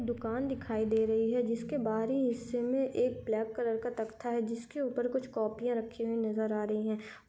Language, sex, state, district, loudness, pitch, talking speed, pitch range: Hindi, female, Chhattisgarh, Korba, -33 LUFS, 230 Hz, 205 wpm, 220-245 Hz